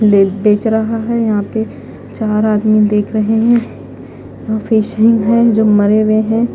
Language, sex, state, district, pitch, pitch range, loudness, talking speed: Hindi, female, Punjab, Fazilka, 220 Hz, 210-225 Hz, -13 LUFS, 155 wpm